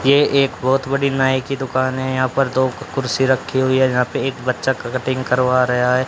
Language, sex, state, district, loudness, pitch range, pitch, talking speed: Hindi, male, Haryana, Rohtak, -18 LUFS, 130-135 Hz, 130 Hz, 225 wpm